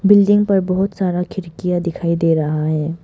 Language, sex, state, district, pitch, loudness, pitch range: Hindi, female, Arunachal Pradesh, Papum Pare, 180 Hz, -17 LUFS, 165-195 Hz